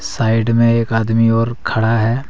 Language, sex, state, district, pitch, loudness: Hindi, male, Jharkhand, Deoghar, 115 Hz, -15 LUFS